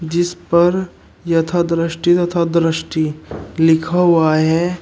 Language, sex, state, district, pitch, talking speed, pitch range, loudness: Hindi, male, Uttar Pradesh, Shamli, 170 Hz, 110 wpm, 160-175 Hz, -16 LUFS